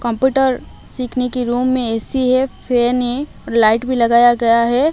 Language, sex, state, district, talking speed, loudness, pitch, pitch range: Hindi, female, Odisha, Malkangiri, 170 wpm, -16 LUFS, 245 Hz, 235-255 Hz